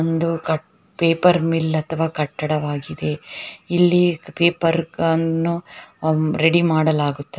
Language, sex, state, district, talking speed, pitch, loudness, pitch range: Kannada, female, Karnataka, Raichur, 95 wpm, 165 Hz, -20 LUFS, 155-170 Hz